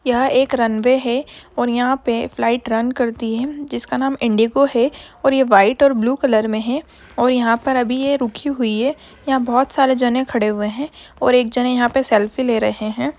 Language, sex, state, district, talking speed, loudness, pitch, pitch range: Hindi, female, Bihar, Madhepura, 220 wpm, -17 LUFS, 250 Hz, 230-270 Hz